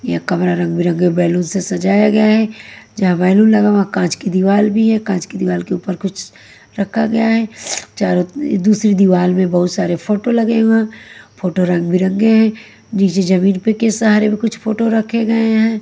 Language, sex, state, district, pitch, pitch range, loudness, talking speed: Hindi, female, Haryana, Jhajjar, 200 Hz, 180-220 Hz, -15 LUFS, 195 wpm